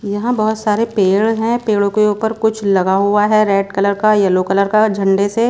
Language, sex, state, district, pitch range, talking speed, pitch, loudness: Hindi, female, Bihar, West Champaran, 200-220 Hz, 220 wpm, 210 Hz, -14 LUFS